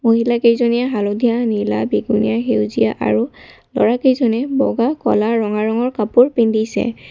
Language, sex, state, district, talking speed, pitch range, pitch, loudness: Assamese, female, Assam, Kamrup Metropolitan, 125 wpm, 215-240 Hz, 230 Hz, -16 LUFS